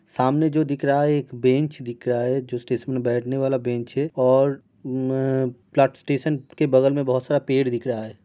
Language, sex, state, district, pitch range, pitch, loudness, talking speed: Hindi, male, Uttar Pradesh, Budaun, 125-140 Hz, 130 Hz, -22 LUFS, 225 wpm